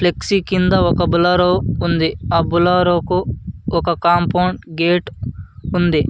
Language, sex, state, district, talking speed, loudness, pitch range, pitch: Telugu, male, Andhra Pradesh, Anantapur, 120 wpm, -16 LUFS, 165-180 Hz, 175 Hz